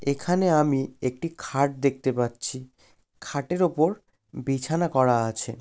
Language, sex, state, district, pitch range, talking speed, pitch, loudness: Bengali, male, West Bengal, Jalpaiguri, 130-165 Hz, 120 wpm, 140 Hz, -25 LUFS